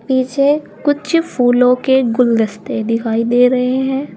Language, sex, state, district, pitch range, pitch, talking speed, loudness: Hindi, female, Uttar Pradesh, Saharanpur, 235-275 Hz, 250 Hz, 130 wpm, -15 LUFS